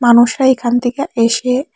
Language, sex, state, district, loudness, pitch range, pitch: Bengali, female, Tripura, West Tripura, -13 LUFS, 240-260 Hz, 245 Hz